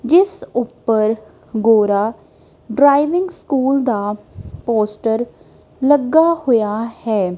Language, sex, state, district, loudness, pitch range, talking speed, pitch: Punjabi, female, Punjab, Kapurthala, -17 LUFS, 215-285 Hz, 80 wpm, 235 Hz